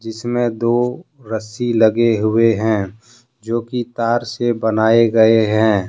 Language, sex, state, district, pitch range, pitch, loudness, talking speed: Hindi, male, Jharkhand, Deoghar, 110-120 Hz, 115 Hz, -16 LUFS, 130 wpm